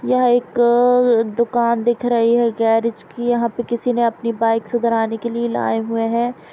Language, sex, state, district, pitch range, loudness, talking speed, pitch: Hindi, female, Uttar Pradesh, Jalaun, 230-240 Hz, -18 LUFS, 185 wpm, 235 Hz